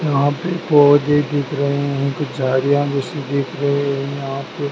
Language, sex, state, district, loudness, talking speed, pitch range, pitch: Hindi, male, Madhya Pradesh, Dhar, -18 LUFS, 190 wpm, 140-145 Hz, 140 Hz